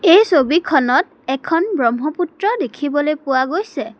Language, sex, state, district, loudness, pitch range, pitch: Assamese, female, Assam, Sonitpur, -17 LUFS, 270-355 Hz, 305 Hz